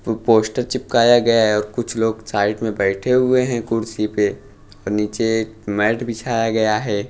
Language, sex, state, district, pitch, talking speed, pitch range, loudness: Hindi, male, Punjab, Pathankot, 110 Hz, 175 wpm, 105-115 Hz, -19 LUFS